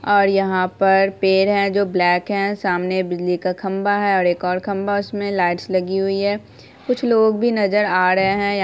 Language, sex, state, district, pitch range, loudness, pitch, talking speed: Hindi, female, Bihar, Saharsa, 185-200 Hz, -18 LUFS, 195 Hz, 220 wpm